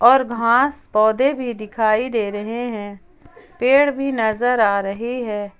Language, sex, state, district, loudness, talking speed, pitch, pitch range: Hindi, female, Jharkhand, Ranchi, -19 LUFS, 150 wpm, 235 Hz, 215-255 Hz